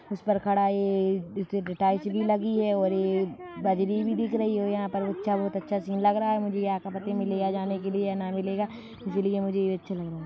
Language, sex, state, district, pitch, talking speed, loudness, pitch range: Hindi, female, Chhattisgarh, Bilaspur, 200 Hz, 200 wpm, -28 LUFS, 195-205 Hz